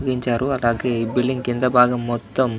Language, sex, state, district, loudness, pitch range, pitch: Telugu, male, Andhra Pradesh, Anantapur, -20 LUFS, 120-130 Hz, 125 Hz